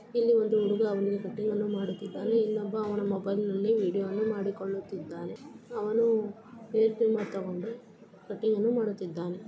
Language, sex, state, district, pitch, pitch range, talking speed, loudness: Kannada, female, Karnataka, Belgaum, 210 Hz, 195-220 Hz, 115 wpm, -30 LUFS